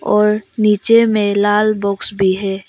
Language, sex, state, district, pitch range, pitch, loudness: Hindi, female, Arunachal Pradesh, Papum Pare, 200-215 Hz, 210 Hz, -14 LUFS